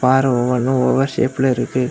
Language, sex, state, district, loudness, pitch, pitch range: Tamil, male, Tamil Nadu, Kanyakumari, -17 LUFS, 130 Hz, 125-130 Hz